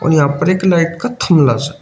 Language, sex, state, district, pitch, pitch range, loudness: Hindi, male, Uttar Pradesh, Shamli, 165 Hz, 145-185 Hz, -13 LUFS